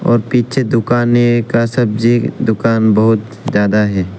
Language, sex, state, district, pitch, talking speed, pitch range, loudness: Hindi, male, Arunachal Pradesh, Lower Dibang Valley, 115 Hz, 130 wpm, 110-120 Hz, -13 LUFS